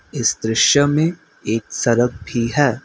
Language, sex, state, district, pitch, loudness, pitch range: Hindi, male, Assam, Kamrup Metropolitan, 120 Hz, -18 LUFS, 115-145 Hz